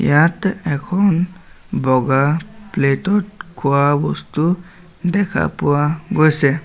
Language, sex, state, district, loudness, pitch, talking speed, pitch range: Assamese, male, Assam, Sonitpur, -17 LUFS, 165 Hz, 80 wpm, 145-185 Hz